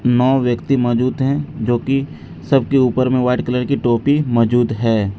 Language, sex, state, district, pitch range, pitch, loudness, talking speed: Hindi, male, Bihar, Katihar, 120-135 Hz, 125 Hz, -17 LUFS, 185 wpm